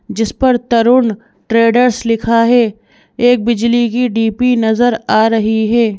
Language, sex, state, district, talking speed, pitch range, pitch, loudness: Hindi, female, Madhya Pradesh, Bhopal, 140 wpm, 225-245 Hz, 230 Hz, -13 LUFS